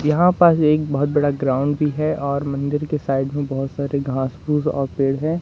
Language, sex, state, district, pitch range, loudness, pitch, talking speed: Hindi, male, Madhya Pradesh, Katni, 140-150 Hz, -20 LUFS, 145 Hz, 220 wpm